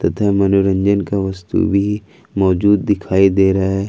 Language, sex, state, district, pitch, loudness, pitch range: Hindi, male, Jharkhand, Ranchi, 100 Hz, -15 LUFS, 95-100 Hz